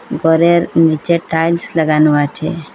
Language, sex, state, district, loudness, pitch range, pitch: Bengali, female, Assam, Hailakandi, -13 LUFS, 155-170 Hz, 160 Hz